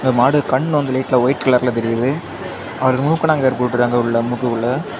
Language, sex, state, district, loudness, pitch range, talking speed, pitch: Tamil, male, Tamil Nadu, Kanyakumari, -17 LUFS, 120-135 Hz, 155 wpm, 130 Hz